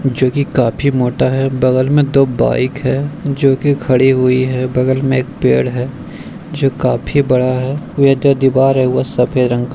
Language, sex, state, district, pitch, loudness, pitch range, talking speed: Hindi, male, Bihar, Bhagalpur, 130 Hz, -14 LUFS, 125-140 Hz, 205 wpm